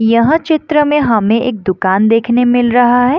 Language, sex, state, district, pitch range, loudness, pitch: Hindi, female, Bihar, Madhepura, 225-280 Hz, -12 LUFS, 245 Hz